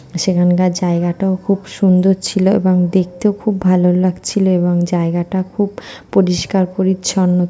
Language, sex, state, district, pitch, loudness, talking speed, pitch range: Bengali, female, West Bengal, North 24 Parganas, 185 Hz, -15 LUFS, 120 wpm, 180-195 Hz